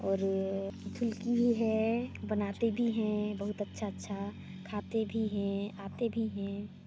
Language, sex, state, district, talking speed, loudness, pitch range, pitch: Hindi, female, Chhattisgarh, Sarguja, 150 wpm, -34 LUFS, 200-225 Hz, 210 Hz